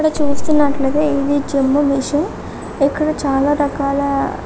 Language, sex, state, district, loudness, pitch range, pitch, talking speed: Telugu, female, Telangana, Karimnagar, -17 LUFS, 275-295 Hz, 285 Hz, 120 wpm